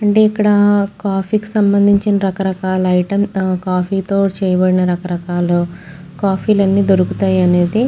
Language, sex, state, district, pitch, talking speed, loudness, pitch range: Telugu, female, Andhra Pradesh, Chittoor, 195 Hz, 130 wpm, -15 LUFS, 180-200 Hz